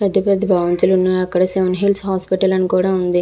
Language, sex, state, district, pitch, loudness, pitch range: Telugu, female, Andhra Pradesh, Visakhapatnam, 185 Hz, -16 LUFS, 185-190 Hz